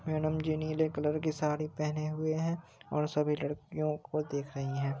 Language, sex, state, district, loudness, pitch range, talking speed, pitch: Hindi, male, Uttar Pradesh, Jalaun, -34 LUFS, 150-155 Hz, 190 wpm, 150 Hz